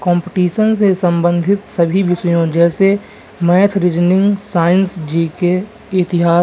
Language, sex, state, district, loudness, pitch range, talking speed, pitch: Hindi, male, Bihar, Vaishali, -14 LUFS, 170-195 Hz, 110 wpm, 180 Hz